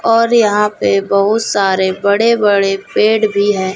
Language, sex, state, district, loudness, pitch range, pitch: Hindi, female, Chhattisgarh, Raipur, -13 LUFS, 195-220 Hz, 205 Hz